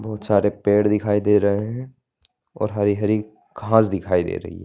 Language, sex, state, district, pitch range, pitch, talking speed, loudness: Hindi, male, Bihar, Darbhanga, 100-110 Hz, 105 Hz, 180 wpm, -20 LUFS